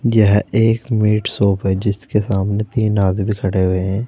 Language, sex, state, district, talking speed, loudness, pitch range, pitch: Hindi, male, Uttar Pradesh, Saharanpur, 175 wpm, -17 LUFS, 100-110 Hz, 105 Hz